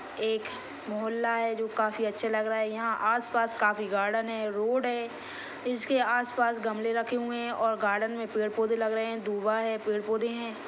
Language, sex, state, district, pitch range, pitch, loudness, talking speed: Hindi, female, Chhattisgarh, Sukma, 215-230 Hz, 225 Hz, -29 LUFS, 195 wpm